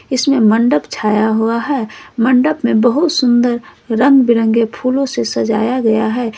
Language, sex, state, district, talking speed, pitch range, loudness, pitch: Hindi, female, Jharkhand, Ranchi, 150 wpm, 220-260 Hz, -14 LUFS, 240 Hz